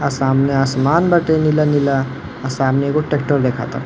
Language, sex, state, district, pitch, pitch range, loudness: Bhojpuri, male, Uttar Pradesh, Varanasi, 140 Hz, 135-150 Hz, -16 LUFS